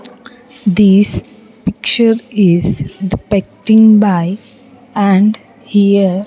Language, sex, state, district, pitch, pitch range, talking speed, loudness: English, female, Andhra Pradesh, Sri Satya Sai, 210 Hz, 200-235 Hz, 75 wpm, -12 LUFS